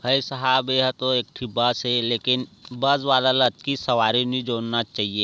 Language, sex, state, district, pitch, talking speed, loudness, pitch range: Chhattisgarhi, male, Chhattisgarh, Raigarh, 125 Hz, 160 wpm, -22 LUFS, 120-130 Hz